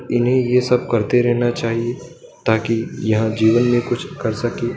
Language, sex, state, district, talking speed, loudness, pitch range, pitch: Hindi, male, Madhya Pradesh, Dhar, 165 wpm, -18 LUFS, 115-125 Hz, 120 Hz